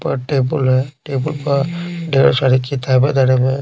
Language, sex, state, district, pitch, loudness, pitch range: Hindi, male, Bihar, Patna, 135 Hz, -16 LUFS, 130-145 Hz